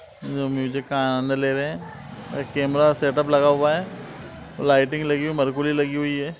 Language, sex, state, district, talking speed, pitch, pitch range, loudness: Hindi, male, Uttar Pradesh, Etah, 205 wpm, 145 Hz, 140-150 Hz, -22 LUFS